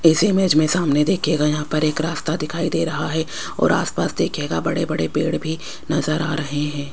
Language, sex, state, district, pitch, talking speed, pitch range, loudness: Hindi, female, Rajasthan, Jaipur, 155 Hz, 210 wpm, 150-165 Hz, -20 LUFS